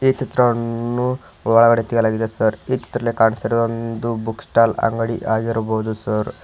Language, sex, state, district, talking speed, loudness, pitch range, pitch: Kannada, male, Karnataka, Koppal, 130 wpm, -19 LUFS, 110-120 Hz, 115 Hz